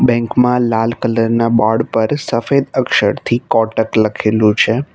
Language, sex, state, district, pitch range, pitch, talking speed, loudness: Gujarati, male, Gujarat, Navsari, 110-120 Hz, 115 Hz, 145 wpm, -14 LUFS